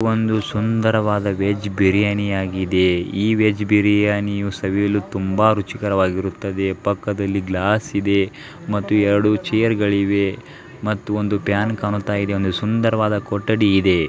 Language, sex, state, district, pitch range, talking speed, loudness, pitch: Kannada, male, Karnataka, Dharwad, 100-105 Hz, 120 wpm, -19 LUFS, 105 Hz